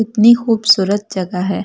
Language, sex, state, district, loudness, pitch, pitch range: Hindi, female, Delhi, New Delhi, -14 LUFS, 205 Hz, 195-225 Hz